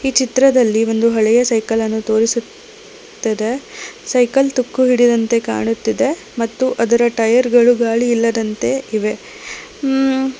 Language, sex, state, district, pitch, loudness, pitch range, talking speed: Kannada, female, Karnataka, Bangalore, 240 Hz, -15 LUFS, 225-270 Hz, 90 wpm